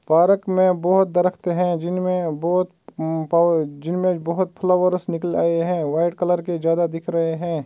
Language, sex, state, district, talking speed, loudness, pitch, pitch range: Hindi, male, Uttar Pradesh, Ghazipur, 170 wpm, -20 LUFS, 175 Hz, 165-180 Hz